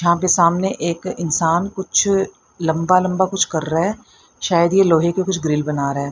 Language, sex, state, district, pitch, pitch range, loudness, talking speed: Hindi, female, Haryana, Rohtak, 170 Hz, 165-190 Hz, -18 LUFS, 205 wpm